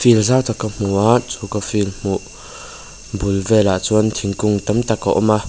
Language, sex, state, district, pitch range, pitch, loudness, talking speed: Mizo, male, Mizoram, Aizawl, 100-110 Hz, 105 Hz, -17 LUFS, 205 wpm